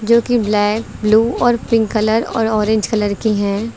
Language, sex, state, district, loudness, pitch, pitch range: Hindi, female, Uttar Pradesh, Lucknow, -16 LUFS, 220 Hz, 215-230 Hz